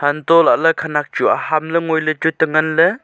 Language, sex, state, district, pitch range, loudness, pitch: Wancho, male, Arunachal Pradesh, Longding, 155-165 Hz, -16 LUFS, 160 Hz